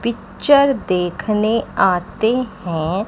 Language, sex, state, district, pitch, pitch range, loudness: Hindi, female, Chandigarh, Chandigarh, 215 Hz, 185-230 Hz, -18 LUFS